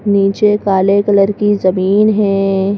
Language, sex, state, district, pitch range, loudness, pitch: Hindi, female, Madhya Pradesh, Bhopal, 195-205 Hz, -12 LUFS, 200 Hz